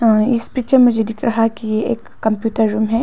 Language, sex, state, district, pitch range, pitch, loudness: Hindi, female, Arunachal Pradesh, Papum Pare, 220-235 Hz, 225 Hz, -17 LUFS